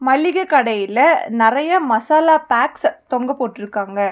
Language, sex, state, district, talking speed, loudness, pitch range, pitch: Tamil, female, Tamil Nadu, Nilgiris, 100 wpm, -16 LUFS, 225-310 Hz, 255 Hz